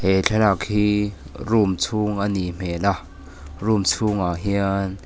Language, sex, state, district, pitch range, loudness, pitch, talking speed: Mizo, male, Mizoram, Aizawl, 90-105 Hz, -21 LUFS, 100 Hz, 130 wpm